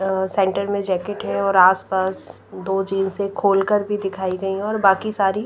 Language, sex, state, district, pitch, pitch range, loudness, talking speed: Hindi, female, Punjab, Pathankot, 195 Hz, 190-200 Hz, -20 LUFS, 185 wpm